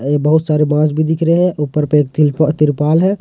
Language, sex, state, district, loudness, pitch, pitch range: Hindi, male, Jharkhand, Ranchi, -14 LUFS, 150 Hz, 150-160 Hz